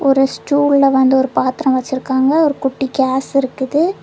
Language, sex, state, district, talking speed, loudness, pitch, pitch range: Tamil, female, Tamil Nadu, Kanyakumari, 150 wpm, -15 LUFS, 270 Hz, 260-285 Hz